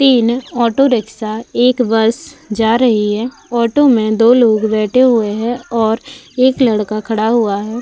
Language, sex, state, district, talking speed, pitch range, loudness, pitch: Hindi, female, Uttar Pradesh, Budaun, 160 wpm, 220-250 Hz, -14 LUFS, 235 Hz